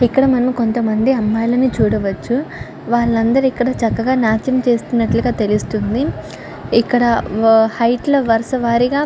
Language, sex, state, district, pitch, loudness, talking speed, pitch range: Telugu, female, Andhra Pradesh, Chittoor, 235 Hz, -16 LUFS, 105 wpm, 220-255 Hz